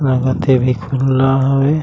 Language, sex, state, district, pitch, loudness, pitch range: Chhattisgarhi, male, Chhattisgarh, Raigarh, 135 Hz, -15 LUFS, 130-135 Hz